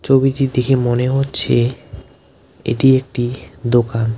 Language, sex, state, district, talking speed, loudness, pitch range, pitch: Bengali, male, West Bengal, Alipurduar, 115 wpm, -16 LUFS, 120-135 Hz, 125 Hz